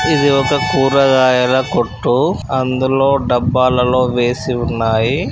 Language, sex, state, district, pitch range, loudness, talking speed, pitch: Telugu, male, Andhra Pradesh, Guntur, 125-135 Hz, -14 LUFS, 90 wpm, 130 Hz